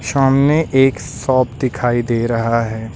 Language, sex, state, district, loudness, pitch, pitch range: Hindi, male, Uttar Pradesh, Lucknow, -16 LUFS, 125 Hz, 115-135 Hz